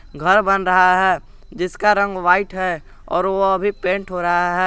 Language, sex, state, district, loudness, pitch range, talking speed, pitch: Hindi, male, Jharkhand, Garhwa, -17 LUFS, 175-195 Hz, 195 wpm, 185 Hz